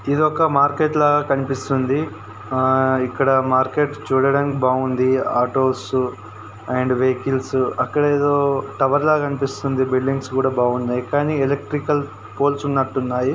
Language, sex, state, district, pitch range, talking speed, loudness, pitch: Telugu, male, Telangana, Karimnagar, 130-140 Hz, 110 wpm, -19 LUFS, 135 Hz